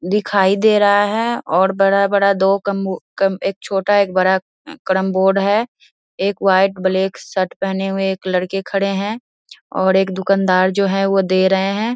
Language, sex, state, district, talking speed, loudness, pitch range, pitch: Hindi, female, Bihar, Vaishali, 175 wpm, -17 LUFS, 190-200 Hz, 195 Hz